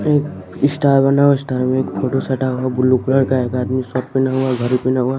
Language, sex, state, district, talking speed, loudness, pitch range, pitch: Hindi, male, Bihar, West Champaran, 255 wpm, -17 LUFS, 130-135 Hz, 130 Hz